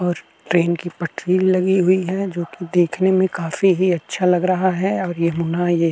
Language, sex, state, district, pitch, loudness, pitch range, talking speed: Hindi, male, Uttar Pradesh, Jalaun, 180 Hz, -19 LUFS, 170-185 Hz, 210 wpm